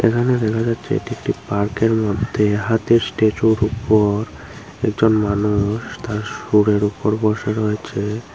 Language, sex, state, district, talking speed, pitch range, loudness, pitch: Bengali, female, Tripura, Unakoti, 120 wpm, 105-115 Hz, -19 LUFS, 110 Hz